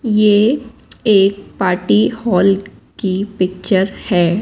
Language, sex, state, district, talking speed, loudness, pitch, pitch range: Hindi, female, Madhya Pradesh, Katni, 95 wpm, -15 LUFS, 195 Hz, 185-215 Hz